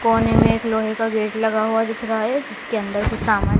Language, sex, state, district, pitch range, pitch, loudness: Hindi, female, Madhya Pradesh, Dhar, 220-225 Hz, 225 Hz, -20 LUFS